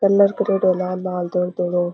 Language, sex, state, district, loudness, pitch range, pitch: Rajasthani, female, Rajasthan, Churu, -20 LUFS, 180-195 Hz, 185 Hz